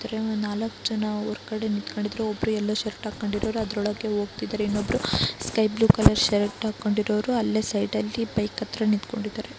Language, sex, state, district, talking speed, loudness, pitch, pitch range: Kannada, female, Karnataka, Raichur, 130 wpm, -26 LUFS, 215 Hz, 210-220 Hz